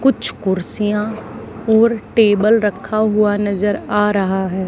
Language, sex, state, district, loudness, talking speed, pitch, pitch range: Hindi, female, Haryana, Charkhi Dadri, -16 LUFS, 130 wpm, 210 Hz, 200-220 Hz